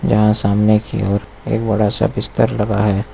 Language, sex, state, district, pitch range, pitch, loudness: Hindi, male, Uttar Pradesh, Lucknow, 100-110 Hz, 105 Hz, -16 LUFS